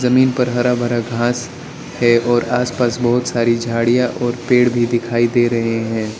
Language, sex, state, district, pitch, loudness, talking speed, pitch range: Hindi, male, Arunachal Pradesh, Lower Dibang Valley, 120 Hz, -16 LUFS, 175 wpm, 115-125 Hz